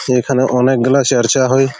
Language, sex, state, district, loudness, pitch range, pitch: Bengali, male, West Bengal, Malda, -13 LUFS, 125-135 Hz, 130 Hz